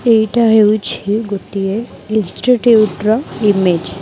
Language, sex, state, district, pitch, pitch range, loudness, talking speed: Odia, female, Odisha, Khordha, 215 Hz, 200-225 Hz, -14 LUFS, 105 wpm